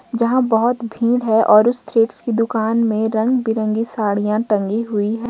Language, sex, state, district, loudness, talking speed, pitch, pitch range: Hindi, female, Jharkhand, Ranchi, -17 LUFS, 180 wpm, 225 Hz, 215-235 Hz